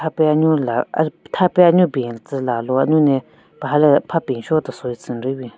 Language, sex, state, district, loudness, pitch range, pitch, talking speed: Rengma, female, Nagaland, Kohima, -18 LUFS, 130-155 Hz, 145 Hz, 205 wpm